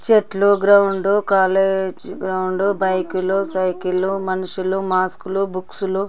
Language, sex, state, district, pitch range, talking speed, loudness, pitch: Telugu, female, Telangana, Karimnagar, 185-195 Hz, 130 wpm, -19 LUFS, 190 Hz